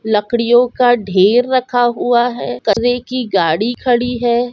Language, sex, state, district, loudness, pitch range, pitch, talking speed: Hindi, female, Andhra Pradesh, Krishna, -14 LUFS, 230-245 Hz, 240 Hz, 145 wpm